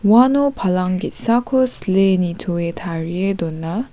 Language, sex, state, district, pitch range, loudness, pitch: Garo, female, Meghalaya, West Garo Hills, 175-235 Hz, -18 LUFS, 190 Hz